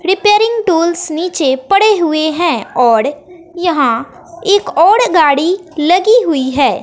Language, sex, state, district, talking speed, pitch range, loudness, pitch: Hindi, female, Bihar, West Champaran, 125 wpm, 290-380 Hz, -12 LUFS, 340 Hz